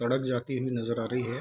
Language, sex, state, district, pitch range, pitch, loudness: Hindi, male, Bihar, Darbhanga, 120-130 Hz, 125 Hz, -31 LUFS